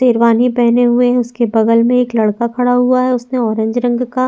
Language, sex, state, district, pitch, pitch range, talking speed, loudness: Hindi, female, Chhattisgarh, Sukma, 245 Hz, 235-245 Hz, 240 wpm, -13 LUFS